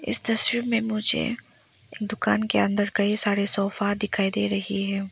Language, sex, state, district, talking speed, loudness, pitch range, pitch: Hindi, female, Arunachal Pradesh, Papum Pare, 175 wpm, -21 LUFS, 195-215 Hz, 205 Hz